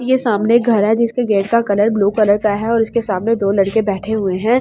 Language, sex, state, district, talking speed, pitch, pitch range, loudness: Hindi, male, Delhi, New Delhi, 275 wpm, 215 Hz, 205-230 Hz, -15 LUFS